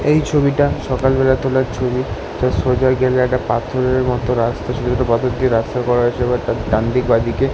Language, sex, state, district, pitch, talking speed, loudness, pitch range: Bengali, male, West Bengal, Kolkata, 125 Hz, 190 wpm, -17 LUFS, 120-130 Hz